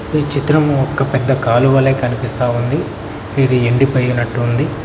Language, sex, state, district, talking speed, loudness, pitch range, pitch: Telugu, male, Telangana, Mahabubabad, 110 wpm, -15 LUFS, 120-140 Hz, 130 Hz